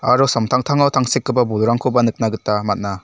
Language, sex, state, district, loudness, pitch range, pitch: Garo, male, Meghalaya, South Garo Hills, -17 LUFS, 110-130 Hz, 120 Hz